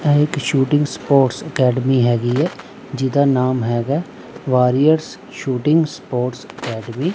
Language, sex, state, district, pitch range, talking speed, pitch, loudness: Punjabi, male, Punjab, Pathankot, 125-145 Hz, 125 wpm, 135 Hz, -18 LUFS